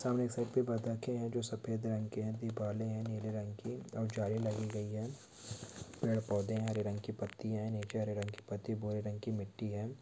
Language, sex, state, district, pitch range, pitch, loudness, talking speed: Hindi, male, West Bengal, Kolkata, 105-115 Hz, 110 Hz, -39 LUFS, 220 wpm